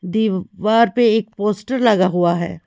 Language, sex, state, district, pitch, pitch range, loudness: Hindi, female, Haryana, Charkhi Dadri, 210 Hz, 185-225 Hz, -17 LUFS